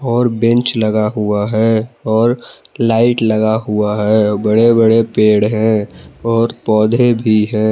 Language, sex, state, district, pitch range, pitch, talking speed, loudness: Hindi, male, Jharkhand, Palamu, 105-115 Hz, 110 Hz, 140 wpm, -13 LUFS